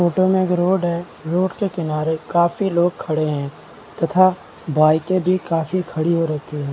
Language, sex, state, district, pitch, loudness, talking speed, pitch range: Hindi, male, Chhattisgarh, Balrampur, 170 Hz, -19 LUFS, 180 wpm, 155-185 Hz